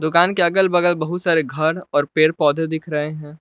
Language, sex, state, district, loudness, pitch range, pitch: Hindi, male, Jharkhand, Palamu, -18 LUFS, 150-175 Hz, 160 Hz